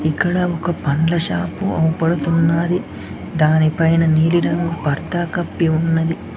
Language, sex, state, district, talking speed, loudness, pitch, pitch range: Telugu, male, Telangana, Mahabubabad, 115 wpm, -18 LUFS, 165 Hz, 155-170 Hz